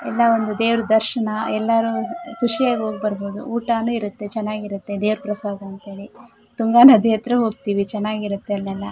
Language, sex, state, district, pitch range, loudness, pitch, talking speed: Kannada, female, Karnataka, Shimoga, 205-230 Hz, -19 LUFS, 215 Hz, 150 wpm